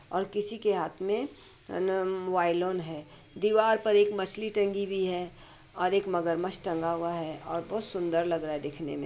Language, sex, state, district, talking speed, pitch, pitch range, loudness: Hindi, female, Bihar, Madhepura, 185 wpm, 185 Hz, 170-200 Hz, -29 LUFS